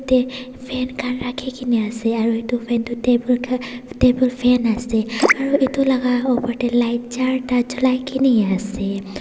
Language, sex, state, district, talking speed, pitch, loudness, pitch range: Nagamese, female, Nagaland, Dimapur, 175 wpm, 250 Hz, -19 LUFS, 235-255 Hz